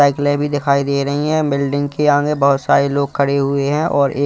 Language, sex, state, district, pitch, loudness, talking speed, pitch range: Hindi, male, Punjab, Kapurthala, 140 Hz, -16 LUFS, 240 wpm, 140-145 Hz